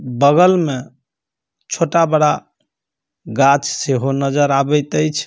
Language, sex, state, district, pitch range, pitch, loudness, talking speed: Maithili, male, Bihar, Samastipur, 135-155 Hz, 145 Hz, -15 LUFS, 100 wpm